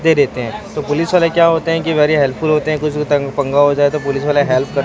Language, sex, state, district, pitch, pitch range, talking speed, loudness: Hindi, male, Chhattisgarh, Raipur, 150 Hz, 140-160 Hz, 335 wpm, -15 LUFS